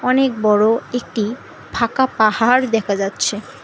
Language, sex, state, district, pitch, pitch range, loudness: Bengali, female, West Bengal, Alipurduar, 230 Hz, 215-250 Hz, -17 LUFS